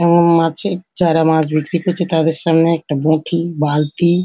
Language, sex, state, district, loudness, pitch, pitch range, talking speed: Bengali, female, West Bengal, North 24 Parganas, -15 LUFS, 165 Hz, 160-170 Hz, 185 wpm